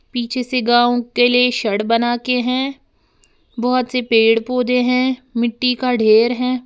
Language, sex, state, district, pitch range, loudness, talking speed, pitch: Hindi, female, Uttar Pradesh, Lalitpur, 235-250 Hz, -16 LUFS, 160 wpm, 245 Hz